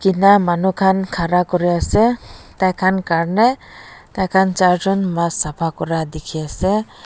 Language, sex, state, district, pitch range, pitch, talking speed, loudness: Nagamese, female, Nagaland, Dimapur, 170-195 Hz, 185 Hz, 155 wpm, -17 LUFS